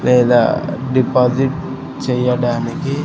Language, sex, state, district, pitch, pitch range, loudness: Telugu, male, Andhra Pradesh, Sri Satya Sai, 130 Hz, 125-135 Hz, -16 LUFS